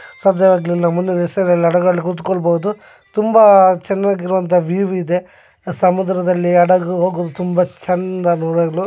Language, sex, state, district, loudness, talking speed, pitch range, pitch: Kannada, male, Karnataka, Dakshina Kannada, -15 LUFS, 110 wpm, 175-190 Hz, 180 Hz